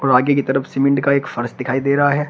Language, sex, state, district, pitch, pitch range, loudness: Hindi, male, Uttar Pradesh, Shamli, 140 Hz, 130-140 Hz, -17 LUFS